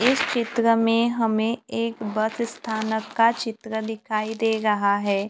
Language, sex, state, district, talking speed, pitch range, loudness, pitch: Hindi, female, Maharashtra, Gondia, 135 wpm, 220-230 Hz, -23 LUFS, 225 Hz